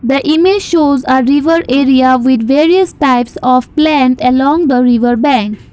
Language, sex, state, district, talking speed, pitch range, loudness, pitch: English, female, Assam, Kamrup Metropolitan, 155 wpm, 255-305 Hz, -10 LUFS, 265 Hz